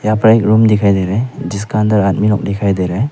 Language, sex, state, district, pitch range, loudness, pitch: Hindi, male, Arunachal Pradesh, Papum Pare, 100-110 Hz, -13 LUFS, 105 Hz